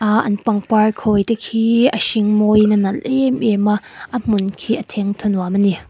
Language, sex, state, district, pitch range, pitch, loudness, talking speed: Mizo, female, Mizoram, Aizawl, 205-230 Hz, 215 Hz, -17 LUFS, 215 wpm